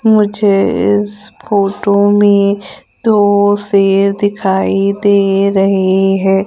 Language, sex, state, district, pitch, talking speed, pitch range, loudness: Hindi, female, Madhya Pradesh, Umaria, 200 Hz, 95 wpm, 195-205 Hz, -12 LUFS